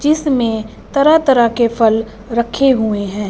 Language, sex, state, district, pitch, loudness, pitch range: Hindi, female, Punjab, Fazilka, 235 Hz, -14 LUFS, 220-270 Hz